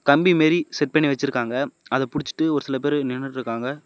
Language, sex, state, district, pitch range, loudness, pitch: Tamil, male, Tamil Nadu, Namakkal, 130-150 Hz, -22 LUFS, 140 Hz